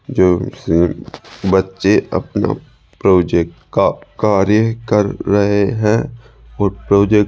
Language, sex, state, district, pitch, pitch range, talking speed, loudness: Hindi, male, Rajasthan, Jaipur, 100 Hz, 95-110 Hz, 105 wpm, -16 LUFS